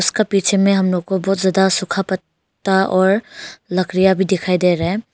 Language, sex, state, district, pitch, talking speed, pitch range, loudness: Hindi, female, Arunachal Pradesh, Longding, 190 Hz, 200 wpm, 185-195 Hz, -17 LUFS